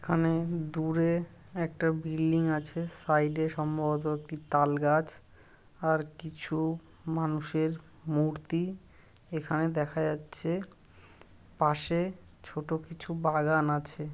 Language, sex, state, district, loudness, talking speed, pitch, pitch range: Bengali, male, West Bengal, North 24 Parganas, -31 LUFS, 95 wpm, 160 Hz, 150-165 Hz